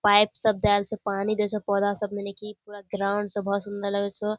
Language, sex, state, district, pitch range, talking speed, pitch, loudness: Hindi, female, Bihar, Kishanganj, 200-210 Hz, 190 wpm, 205 Hz, -26 LUFS